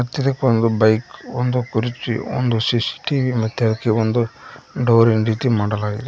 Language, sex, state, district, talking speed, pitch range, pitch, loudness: Kannada, male, Karnataka, Koppal, 140 wpm, 110-125 Hz, 115 Hz, -19 LUFS